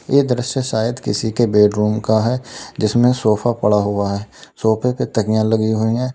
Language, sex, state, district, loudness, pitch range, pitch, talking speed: Hindi, male, Uttar Pradesh, Lalitpur, -17 LUFS, 105-125 Hz, 110 Hz, 185 wpm